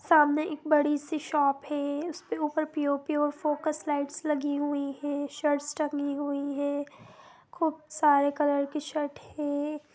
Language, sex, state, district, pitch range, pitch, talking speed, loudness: Hindi, female, Bihar, Darbhanga, 285-305 Hz, 295 Hz, 145 wpm, -29 LUFS